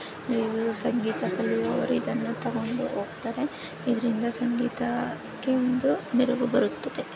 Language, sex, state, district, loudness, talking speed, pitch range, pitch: Kannada, female, Karnataka, Shimoga, -27 LUFS, 100 wpm, 235-255 Hz, 245 Hz